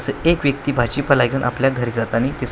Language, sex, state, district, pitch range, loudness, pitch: Marathi, male, Maharashtra, Washim, 120-140 Hz, -19 LUFS, 135 Hz